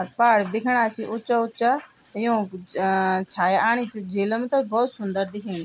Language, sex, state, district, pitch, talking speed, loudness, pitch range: Garhwali, female, Uttarakhand, Tehri Garhwal, 220 Hz, 160 wpm, -23 LUFS, 195-235 Hz